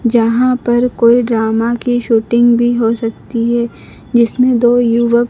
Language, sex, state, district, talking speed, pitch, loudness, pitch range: Hindi, female, Madhya Pradesh, Dhar, 145 wpm, 235 Hz, -13 LUFS, 230-245 Hz